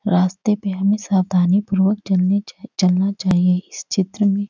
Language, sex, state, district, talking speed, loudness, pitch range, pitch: Hindi, female, West Bengal, North 24 Parganas, 160 wpm, -19 LUFS, 185-200 Hz, 195 Hz